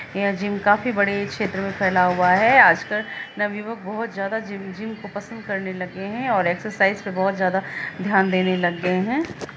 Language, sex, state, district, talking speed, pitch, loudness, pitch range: Hindi, female, Bihar, Araria, 190 wpm, 200 Hz, -21 LUFS, 185-210 Hz